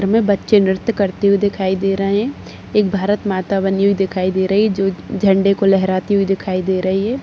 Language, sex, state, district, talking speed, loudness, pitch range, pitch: Hindi, female, Chhattisgarh, Jashpur, 210 wpm, -16 LUFS, 190-200 Hz, 195 Hz